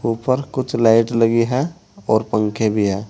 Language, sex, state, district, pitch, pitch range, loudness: Hindi, male, Uttar Pradesh, Saharanpur, 115 Hz, 110-130 Hz, -18 LUFS